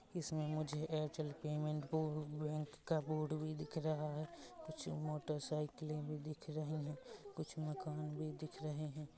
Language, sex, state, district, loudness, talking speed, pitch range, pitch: Hindi, female, Chhattisgarh, Rajnandgaon, -44 LUFS, 170 wpm, 150-155 Hz, 155 Hz